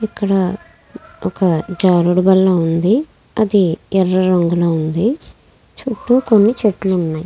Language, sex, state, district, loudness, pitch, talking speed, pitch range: Telugu, female, Andhra Pradesh, Krishna, -15 LUFS, 190 Hz, 110 wpm, 175-215 Hz